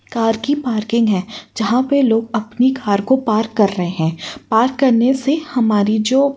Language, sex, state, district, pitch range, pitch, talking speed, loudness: Hindi, female, Uttar Pradesh, Jyotiba Phule Nagar, 215-265 Hz, 225 Hz, 190 wpm, -16 LUFS